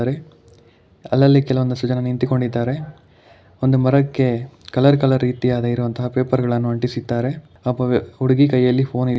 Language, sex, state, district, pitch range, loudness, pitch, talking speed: Kannada, male, Karnataka, Bangalore, 120-130 Hz, -19 LUFS, 125 Hz, 125 wpm